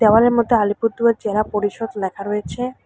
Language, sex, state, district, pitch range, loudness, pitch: Bengali, female, West Bengal, Alipurduar, 205-235 Hz, -19 LUFS, 215 Hz